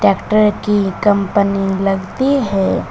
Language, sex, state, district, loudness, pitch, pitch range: Hindi, female, Uttar Pradesh, Shamli, -15 LUFS, 200 Hz, 195-210 Hz